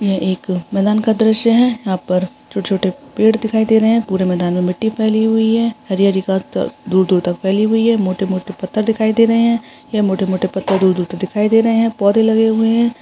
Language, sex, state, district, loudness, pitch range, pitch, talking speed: Hindi, female, Chhattisgarh, Jashpur, -15 LUFS, 190-225 Hz, 210 Hz, 230 wpm